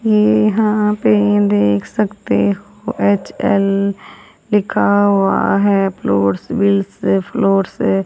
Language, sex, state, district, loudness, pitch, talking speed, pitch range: Hindi, female, Haryana, Jhajjar, -15 LUFS, 200 Hz, 110 wpm, 180-210 Hz